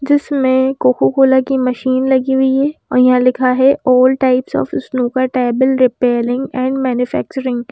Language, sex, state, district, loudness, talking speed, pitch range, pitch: Hindi, female, Madhya Pradesh, Bhopal, -14 LUFS, 165 wpm, 250-265 Hz, 260 Hz